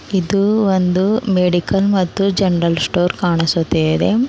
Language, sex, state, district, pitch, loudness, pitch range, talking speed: Kannada, female, Karnataka, Bidar, 185 Hz, -16 LUFS, 175-195 Hz, 100 wpm